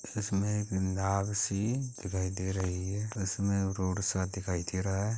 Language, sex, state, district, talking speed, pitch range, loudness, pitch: Hindi, male, Uttar Pradesh, Hamirpur, 175 wpm, 95-100 Hz, -32 LUFS, 95 Hz